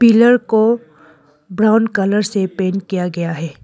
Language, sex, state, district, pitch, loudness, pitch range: Hindi, female, Arunachal Pradesh, Lower Dibang Valley, 195 Hz, -15 LUFS, 165-220 Hz